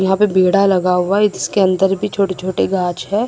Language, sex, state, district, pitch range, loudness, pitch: Hindi, female, Assam, Sonitpur, 185-200 Hz, -15 LUFS, 190 Hz